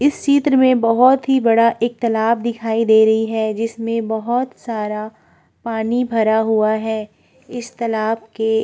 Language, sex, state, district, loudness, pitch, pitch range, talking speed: Hindi, female, Uttar Pradesh, Budaun, -17 LUFS, 225 Hz, 220-240 Hz, 160 wpm